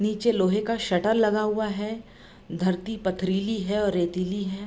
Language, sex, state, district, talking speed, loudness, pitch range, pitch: Hindi, female, Bihar, Vaishali, 165 wpm, -25 LUFS, 185-215 Hz, 205 Hz